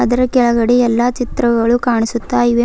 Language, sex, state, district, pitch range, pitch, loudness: Kannada, female, Karnataka, Bidar, 235-245 Hz, 240 Hz, -14 LUFS